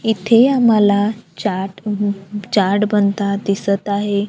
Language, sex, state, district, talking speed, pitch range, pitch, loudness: Marathi, female, Maharashtra, Gondia, 100 wpm, 200-215 Hz, 205 Hz, -17 LUFS